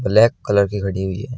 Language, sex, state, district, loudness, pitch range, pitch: Hindi, male, Uttar Pradesh, Shamli, -18 LUFS, 95-115 Hz, 100 Hz